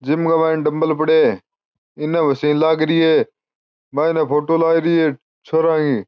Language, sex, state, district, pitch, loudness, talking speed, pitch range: Marwari, male, Rajasthan, Churu, 160 Hz, -17 LUFS, 190 wpm, 150-165 Hz